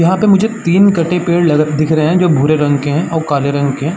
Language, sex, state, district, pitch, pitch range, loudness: Hindi, male, Uttar Pradesh, Varanasi, 160 Hz, 150-175 Hz, -12 LUFS